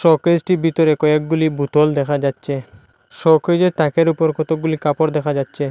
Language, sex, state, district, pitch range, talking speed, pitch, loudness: Bengali, male, Assam, Hailakandi, 145-165 Hz, 135 wpm, 155 Hz, -17 LUFS